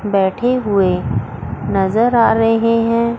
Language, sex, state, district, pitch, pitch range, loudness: Hindi, female, Chandigarh, Chandigarh, 215 Hz, 190-230 Hz, -15 LUFS